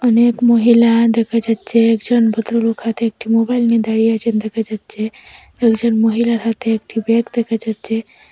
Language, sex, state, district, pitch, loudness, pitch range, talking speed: Bengali, female, Assam, Hailakandi, 230 Hz, -16 LUFS, 225-235 Hz, 160 wpm